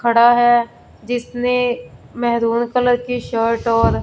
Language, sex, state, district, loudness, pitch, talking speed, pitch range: Hindi, female, Punjab, Fazilka, -17 LUFS, 240 Hz, 120 wpm, 235-245 Hz